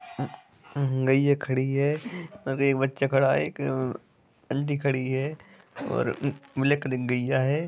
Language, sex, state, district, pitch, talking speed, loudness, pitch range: Hindi, male, Jharkhand, Sahebganj, 140 Hz, 135 wpm, -27 LUFS, 130-145 Hz